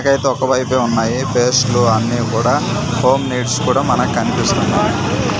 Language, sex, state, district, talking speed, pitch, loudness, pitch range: Telugu, male, Andhra Pradesh, Manyam, 120 wpm, 125 Hz, -15 LUFS, 120-130 Hz